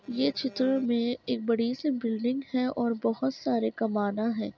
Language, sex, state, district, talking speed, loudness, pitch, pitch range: Hindi, female, Uttarakhand, Tehri Garhwal, 170 wpm, -29 LUFS, 240 Hz, 225-260 Hz